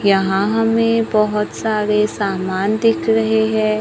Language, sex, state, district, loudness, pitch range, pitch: Hindi, female, Maharashtra, Gondia, -17 LUFS, 185-215 Hz, 205 Hz